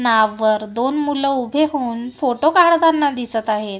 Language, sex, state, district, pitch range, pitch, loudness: Marathi, female, Maharashtra, Gondia, 220-295 Hz, 250 Hz, -17 LUFS